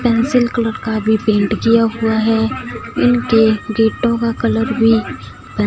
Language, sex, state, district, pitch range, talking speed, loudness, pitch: Hindi, female, Punjab, Fazilka, 220-235 Hz, 150 wpm, -15 LUFS, 225 Hz